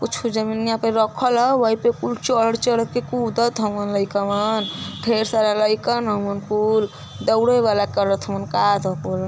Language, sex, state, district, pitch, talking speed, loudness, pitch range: Hindi, female, Uttar Pradesh, Varanasi, 220 Hz, 140 wpm, -20 LUFS, 200-230 Hz